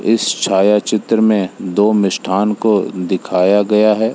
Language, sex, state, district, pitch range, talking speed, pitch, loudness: Hindi, male, Bihar, Samastipur, 100-110 Hz, 130 wpm, 105 Hz, -14 LUFS